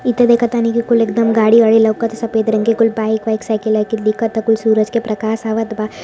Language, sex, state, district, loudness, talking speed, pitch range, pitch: Hindi, female, Uttar Pradesh, Varanasi, -15 LUFS, 250 wpm, 220-230 Hz, 225 Hz